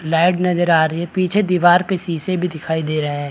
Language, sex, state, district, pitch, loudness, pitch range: Hindi, male, Bihar, Madhepura, 175 Hz, -17 LUFS, 160-180 Hz